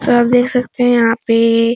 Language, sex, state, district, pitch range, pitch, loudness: Hindi, female, Bihar, Supaul, 230-245 Hz, 240 Hz, -13 LUFS